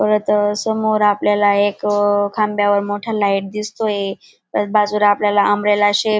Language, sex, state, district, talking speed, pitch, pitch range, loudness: Marathi, female, Maharashtra, Dhule, 135 wpm, 205 Hz, 205-210 Hz, -17 LUFS